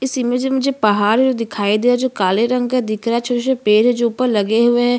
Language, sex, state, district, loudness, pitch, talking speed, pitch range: Hindi, female, Chhattisgarh, Bastar, -16 LUFS, 240 Hz, 325 wpm, 215-255 Hz